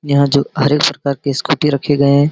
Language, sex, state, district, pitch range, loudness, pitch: Hindi, male, Bihar, Araria, 140-145 Hz, -15 LUFS, 140 Hz